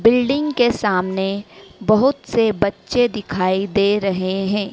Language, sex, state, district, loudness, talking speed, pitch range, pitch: Hindi, female, Madhya Pradesh, Dhar, -18 LUFS, 125 wpm, 195-240 Hz, 205 Hz